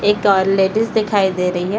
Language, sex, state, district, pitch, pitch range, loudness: Hindi, female, Bihar, Saran, 200 Hz, 190-210 Hz, -16 LUFS